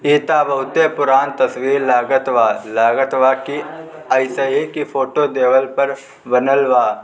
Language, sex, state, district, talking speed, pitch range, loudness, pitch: Bhojpuri, male, Bihar, Gopalganj, 135 wpm, 130-145 Hz, -16 LUFS, 135 Hz